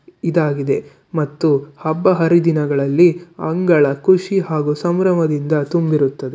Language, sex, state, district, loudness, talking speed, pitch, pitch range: Kannada, male, Karnataka, Shimoga, -17 LUFS, 85 wpm, 160 Hz, 150-175 Hz